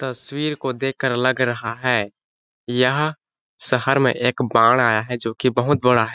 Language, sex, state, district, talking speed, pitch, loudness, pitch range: Hindi, male, Chhattisgarh, Balrampur, 165 wpm, 125 Hz, -20 LUFS, 120-135 Hz